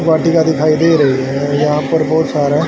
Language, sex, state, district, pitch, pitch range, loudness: Hindi, male, Haryana, Charkhi Dadri, 155 Hz, 145-160 Hz, -13 LUFS